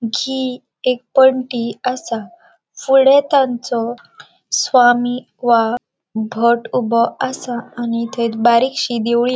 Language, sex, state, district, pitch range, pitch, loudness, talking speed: Konkani, female, Goa, North and South Goa, 235-255 Hz, 245 Hz, -16 LUFS, 85 wpm